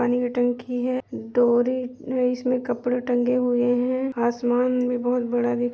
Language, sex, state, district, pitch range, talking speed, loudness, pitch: Hindi, female, Uttar Pradesh, Etah, 245-250 Hz, 180 wpm, -23 LUFS, 245 Hz